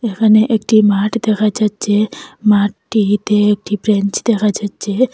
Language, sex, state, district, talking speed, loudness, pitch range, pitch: Bengali, female, Assam, Hailakandi, 115 wpm, -14 LUFS, 205-220 Hz, 210 Hz